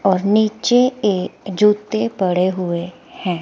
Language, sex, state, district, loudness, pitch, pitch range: Hindi, female, Himachal Pradesh, Shimla, -18 LUFS, 200 Hz, 185-215 Hz